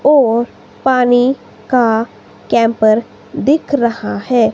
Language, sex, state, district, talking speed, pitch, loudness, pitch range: Hindi, female, Himachal Pradesh, Shimla, 90 wpm, 240 Hz, -14 LUFS, 225-260 Hz